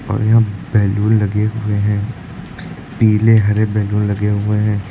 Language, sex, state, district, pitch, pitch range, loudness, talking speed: Hindi, male, Uttar Pradesh, Lucknow, 105 Hz, 105-110 Hz, -15 LUFS, 145 wpm